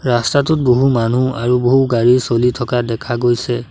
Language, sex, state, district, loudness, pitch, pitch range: Assamese, male, Assam, Sonitpur, -15 LUFS, 120 Hz, 120-130 Hz